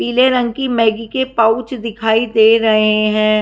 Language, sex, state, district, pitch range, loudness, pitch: Hindi, female, Haryana, Rohtak, 220-245 Hz, -14 LUFS, 225 Hz